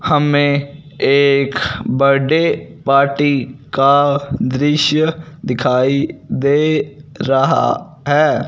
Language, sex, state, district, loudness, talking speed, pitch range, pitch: Hindi, male, Punjab, Fazilka, -15 LUFS, 70 wpm, 140-150 Hz, 140 Hz